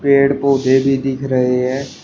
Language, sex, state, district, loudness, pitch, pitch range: Hindi, male, Uttar Pradesh, Shamli, -15 LUFS, 135 Hz, 130-140 Hz